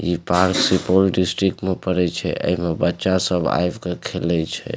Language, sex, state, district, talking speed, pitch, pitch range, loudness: Maithili, male, Bihar, Supaul, 175 wpm, 90 Hz, 85-95 Hz, -20 LUFS